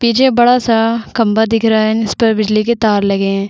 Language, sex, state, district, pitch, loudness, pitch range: Hindi, female, Chhattisgarh, Bastar, 225 Hz, -13 LUFS, 215-235 Hz